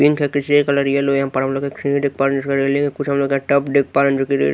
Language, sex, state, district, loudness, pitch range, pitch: Hindi, male, Bihar, Katihar, -18 LUFS, 135-140 Hz, 140 Hz